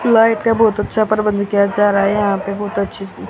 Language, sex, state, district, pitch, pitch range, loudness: Hindi, female, Haryana, Rohtak, 205 Hz, 200-220 Hz, -16 LUFS